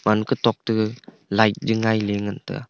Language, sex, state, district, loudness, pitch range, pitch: Wancho, male, Arunachal Pradesh, Longding, -22 LUFS, 105-115 Hz, 110 Hz